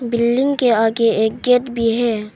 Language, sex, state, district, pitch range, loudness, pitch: Hindi, female, Arunachal Pradesh, Papum Pare, 225-245 Hz, -16 LUFS, 235 Hz